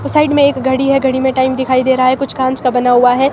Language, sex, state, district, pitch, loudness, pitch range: Hindi, female, Himachal Pradesh, Shimla, 260 Hz, -13 LUFS, 255-275 Hz